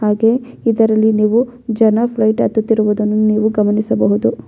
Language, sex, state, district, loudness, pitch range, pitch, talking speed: Kannada, female, Karnataka, Bellary, -14 LUFS, 215-225 Hz, 220 Hz, 120 wpm